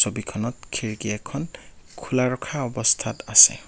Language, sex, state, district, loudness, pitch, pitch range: Assamese, male, Assam, Kamrup Metropolitan, -22 LUFS, 115 Hz, 105-125 Hz